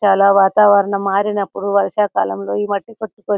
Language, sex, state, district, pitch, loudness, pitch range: Telugu, female, Telangana, Karimnagar, 200 Hz, -15 LUFS, 195-205 Hz